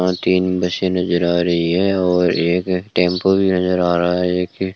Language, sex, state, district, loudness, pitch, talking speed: Hindi, male, Rajasthan, Bikaner, -17 LUFS, 90 Hz, 200 wpm